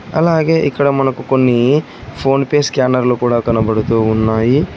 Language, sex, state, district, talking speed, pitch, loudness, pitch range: Telugu, male, Telangana, Hyderabad, 125 wpm, 130 Hz, -14 LUFS, 115-145 Hz